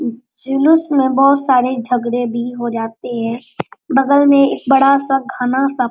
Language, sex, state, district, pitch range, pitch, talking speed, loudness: Hindi, male, Bihar, Araria, 240-275 Hz, 260 Hz, 175 wpm, -15 LUFS